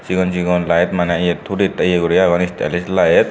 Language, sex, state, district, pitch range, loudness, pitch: Chakma, male, Tripura, Dhalai, 85-90 Hz, -16 LUFS, 90 Hz